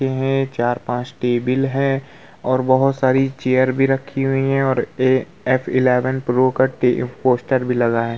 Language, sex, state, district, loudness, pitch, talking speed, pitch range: Hindi, male, Uttar Pradesh, Muzaffarnagar, -18 LUFS, 130 Hz, 160 wpm, 125-135 Hz